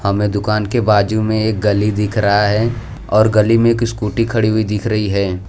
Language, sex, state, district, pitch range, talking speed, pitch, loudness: Hindi, male, Gujarat, Valsad, 105-110 Hz, 220 wpm, 105 Hz, -15 LUFS